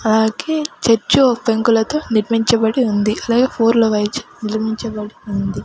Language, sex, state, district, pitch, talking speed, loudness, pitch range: Telugu, female, Andhra Pradesh, Sri Satya Sai, 225 Hz, 95 wpm, -17 LUFS, 215-240 Hz